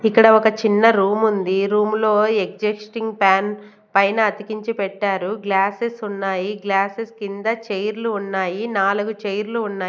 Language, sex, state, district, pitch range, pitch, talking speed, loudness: Telugu, female, Andhra Pradesh, Manyam, 195-220 Hz, 210 Hz, 125 wpm, -19 LUFS